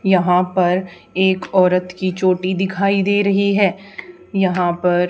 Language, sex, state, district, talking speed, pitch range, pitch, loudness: Hindi, female, Haryana, Charkhi Dadri, 140 wpm, 180-195 Hz, 185 Hz, -17 LUFS